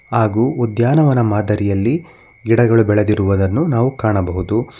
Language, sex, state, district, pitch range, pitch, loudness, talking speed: Kannada, male, Karnataka, Bangalore, 105-120 Hz, 115 Hz, -16 LUFS, 85 wpm